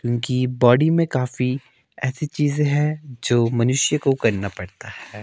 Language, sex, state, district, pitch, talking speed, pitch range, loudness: Hindi, male, Himachal Pradesh, Shimla, 130 Hz, 150 wpm, 120-145 Hz, -20 LUFS